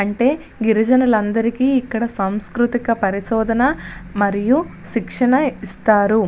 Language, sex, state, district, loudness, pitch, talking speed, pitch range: Telugu, female, Andhra Pradesh, Visakhapatnam, -18 LUFS, 225 Hz, 85 wpm, 205-245 Hz